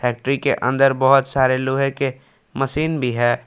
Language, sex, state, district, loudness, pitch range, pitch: Hindi, male, Jharkhand, Palamu, -19 LUFS, 130-135 Hz, 135 Hz